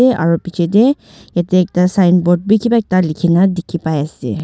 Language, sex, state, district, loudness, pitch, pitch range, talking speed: Nagamese, female, Nagaland, Dimapur, -14 LUFS, 180 Hz, 170-195 Hz, 175 wpm